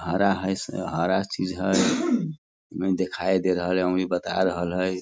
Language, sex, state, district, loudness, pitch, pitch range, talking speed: Hindi, male, Bihar, Sitamarhi, -25 LUFS, 95 Hz, 90-95 Hz, 165 wpm